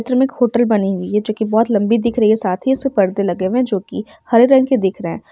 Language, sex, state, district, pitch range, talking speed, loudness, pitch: Hindi, female, Bihar, Sitamarhi, 200-245 Hz, 340 wpm, -16 LUFS, 220 Hz